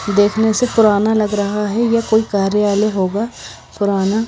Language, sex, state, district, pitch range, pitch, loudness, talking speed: Hindi, female, Himachal Pradesh, Shimla, 205-220 Hz, 210 Hz, -16 LUFS, 170 wpm